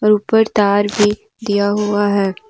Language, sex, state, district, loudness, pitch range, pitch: Hindi, female, Jharkhand, Deoghar, -16 LUFS, 205-215 Hz, 210 Hz